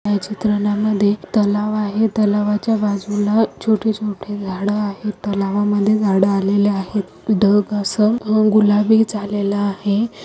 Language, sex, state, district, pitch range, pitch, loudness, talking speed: Marathi, female, Maharashtra, Solapur, 205-215 Hz, 205 Hz, -18 LUFS, 110 wpm